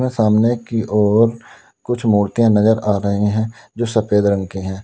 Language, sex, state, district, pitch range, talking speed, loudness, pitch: Hindi, male, Uttar Pradesh, Lalitpur, 105-115 Hz, 175 wpm, -17 LUFS, 110 Hz